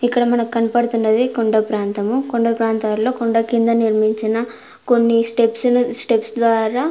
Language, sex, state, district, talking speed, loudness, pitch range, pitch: Telugu, female, Andhra Pradesh, Anantapur, 140 wpm, -16 LUFS, 220-240 Hz, 230 Hz